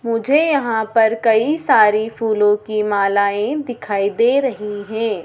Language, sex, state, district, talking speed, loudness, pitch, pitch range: Hindi, female, Madhya Pradesh, Dhar, 135 wpm, -17 LUFS, 220 Hz, 210-235 Hz